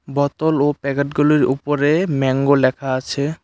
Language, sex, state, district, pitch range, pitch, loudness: Bengali, male, West Bengal, Cooch Behar, 135-145 Hz, 140 Hz, -18 LUFS